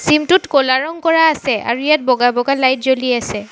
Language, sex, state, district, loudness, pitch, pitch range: Assamese, female, Assam, Sonitpur, -14 LUFS, 265 Hz, 250-305 Hz